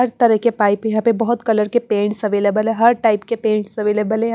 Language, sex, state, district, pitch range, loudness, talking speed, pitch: Hindi, female, Punjab, Pathankot, 210-230 Hz, -17 LUFS, 250 wpm, 220 Hz